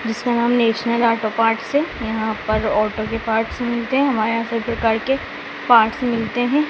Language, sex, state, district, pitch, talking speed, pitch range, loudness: Hindi, female, Madhya Pradesh, Dhar, 230 Hz, 190 wpm, 225-240 Hz, -19 LUFS